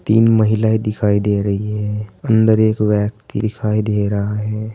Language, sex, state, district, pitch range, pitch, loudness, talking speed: Hindi, male, Uttar Pradesh, Saharanpur, 105-110 Hz, 105 Hz, -17 LUFS, 165 wpm